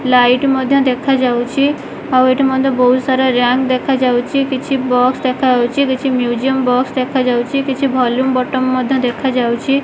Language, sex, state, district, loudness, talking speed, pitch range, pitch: Odia, female, Odisha, Malkangiri, -14 LUFS, 135 wpm, 250-270 Hz, 260 Hz